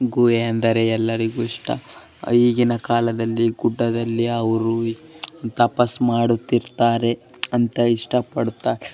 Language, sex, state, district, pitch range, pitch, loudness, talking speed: Kannada, male, Karnataka, Bellary, 115-120 Hz, 115 Hz, -20 LUFS, 95 wpm